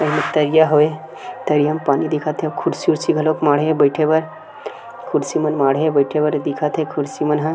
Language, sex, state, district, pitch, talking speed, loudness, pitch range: Chhattisgarhi, male, Chhattisgarh, Sukma, 155 Hz, 230 wpm, -18 LUFS, 150-155 Hz